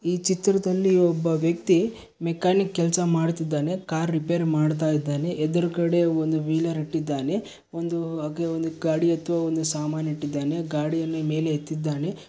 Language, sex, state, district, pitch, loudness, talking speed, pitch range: Kannada, male, Karnataka, Bellary, 165 Hz, -25 LUFS, 130 wpm, 155-170 Hz